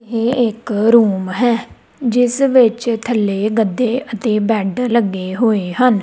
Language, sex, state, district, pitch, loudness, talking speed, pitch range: Punjabi, female, Punjab, Kapurthala, 230 Hz, -16 LUFS, 130 wpm, 210-245 Hz